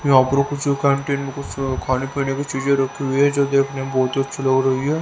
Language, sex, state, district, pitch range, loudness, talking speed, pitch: Hindi, male, Haryana, Rohtak, 135-140 Hz, -20 LUFS, 260 wpm, 135 Hz